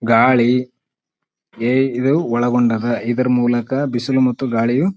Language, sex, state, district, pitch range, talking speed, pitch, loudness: Kannada, male, Karnataka, Bijapur, 120-130 Hz, 120 wpm, 125 Hz, -17 LUFS